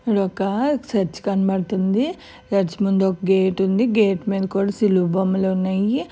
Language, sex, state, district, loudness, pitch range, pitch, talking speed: Telugu, female, Andhra Pradesh, Guntur, -20 LUFS, 190-210 Hz, 195 Hz, 130 wpm